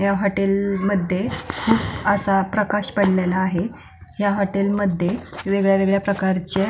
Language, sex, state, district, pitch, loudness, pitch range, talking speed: Marathi, female, Maharashtra, Pune, 195 Hz, -20 LUFS, 190-200 Hz, 105 wpm